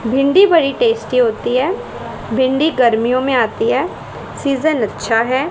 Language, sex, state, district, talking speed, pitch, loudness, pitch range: Hindi, female, Haryana, Charkhi Dadri, 140 wpm, 270 Hz, -15 LUFS, 250-320 Hz